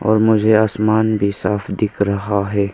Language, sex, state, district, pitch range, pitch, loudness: Hindi, male, Arunachal Pradesh, Longding, 100-110 Hz, 105 Hz, -16 LUFS